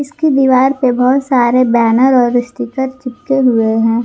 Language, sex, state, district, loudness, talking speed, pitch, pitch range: Hindi, female, Jharkhand, Garhwa, -12 LUFS, 165 wpm, 255 Hz, 240-265 Hz